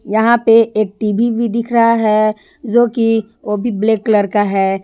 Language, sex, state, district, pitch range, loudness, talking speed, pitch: Hindi, female, Jharkhand, Ranchi, 210-230 Hz, -14 LUFS, 200 wpm, 225 Hz